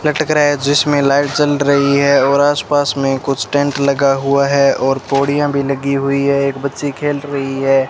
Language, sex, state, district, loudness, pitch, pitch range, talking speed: Hindi, male, Rajasthan, Bikaner, -14 LUFS, 140 Hz, 140-145 Hz, 205 wpm